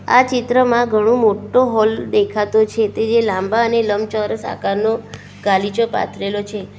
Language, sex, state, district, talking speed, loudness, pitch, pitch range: Gujarati, female, Gujarat, Valsad, 140 wpm, -17 LUFS, 220 Hz, 210-230 Hz